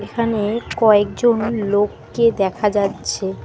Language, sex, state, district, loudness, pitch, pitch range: Bengali, female, West Bengal, Alipurduar, -18 LUFS, 210 Hz, 205-230 Hz